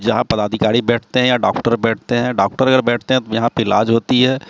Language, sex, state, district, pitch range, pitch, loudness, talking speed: Hindi, male, Bihar, Katihar, 110-125 Hz, 120 Hz, -16 LUFS, 240 wpm